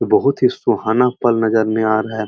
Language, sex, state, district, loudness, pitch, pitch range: Hindi, male, Uttar Pradesh, Muzaffarnagar, -16 LUFS, 110 Hz, 110-125 Hz